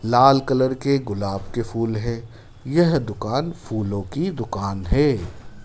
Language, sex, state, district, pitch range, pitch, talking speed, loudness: Hindi, male, Madhya Pradesh, Dhar, 105-135 Hz, 115 Hz, 140 wpm, -22 LUFS